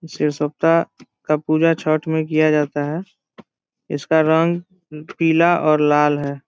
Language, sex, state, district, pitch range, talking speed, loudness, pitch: Hindi, male, Bihar, Saran, 150-165 Hz, 155 wpm, -18 LUFS, 155 Hz